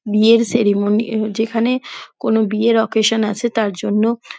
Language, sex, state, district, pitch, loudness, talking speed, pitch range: Bengali, female, West Bengal, Dakshin Dinajpur, 220 Hz, -17 LUFS, 150 wpm, 215-230 Hz